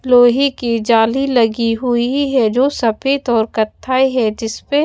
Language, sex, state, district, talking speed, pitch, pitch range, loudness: Hindi, female, Haryana, Charkhi Dadri, 160 wpm, 245 Hz, 225-265 Hz, -15 LUFS